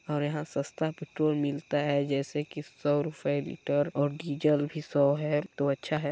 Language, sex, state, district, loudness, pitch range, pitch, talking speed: Hindi, female, Chhattisgarh, Balrampur, -30 LUFS, 145-150 Hz, 145 Hz, 185 wpm